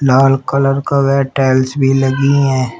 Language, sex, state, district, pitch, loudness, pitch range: Hindi, female, Uttar Pradesh, Shamli, 135 Hz, -13 LUFS, 130-140 Hz